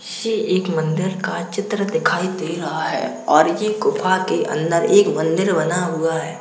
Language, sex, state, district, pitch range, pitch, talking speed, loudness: Hindi, male, Uttar Pradesh, Jalaun, 165-210 Hz, 185 Hz, 180 wpm, -19 LUFS